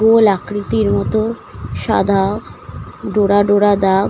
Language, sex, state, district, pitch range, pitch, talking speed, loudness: Bengali, female, West Bengal, Malda, 195-210 Hz, 205 Hz, 115 wpm, -15 LUFS